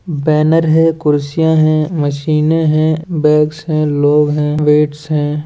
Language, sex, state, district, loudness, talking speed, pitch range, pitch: Hindi, male, Chhattisgarh, Raigarh, -13 LUFS, 130 wpm, 150-160 Hz, 155 Hz